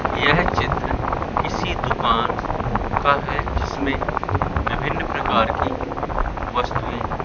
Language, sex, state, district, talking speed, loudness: Hindi, male, Madhya Pradesh, Katni, 90 wpm, -22 LUFS